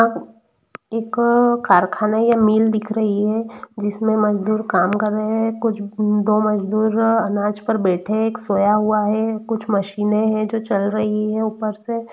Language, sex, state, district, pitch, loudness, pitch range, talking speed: Hindi, female, Bihar, East Champaran, 215 Hz, -19 LUFS, 210-225 Hz, 170 wpm